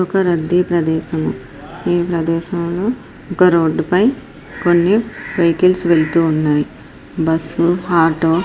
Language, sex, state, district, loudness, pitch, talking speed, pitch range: Telugu, female, Andhra Pradesh, Srikakulam, -16 LUFS, 170 Hz, 115 wpm, 160-180 Hz